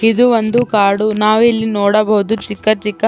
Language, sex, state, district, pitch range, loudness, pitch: Kannada, female, Karnataka, Chamarajanagar, 210-225 Hz, -13 LUFS, 215 Hz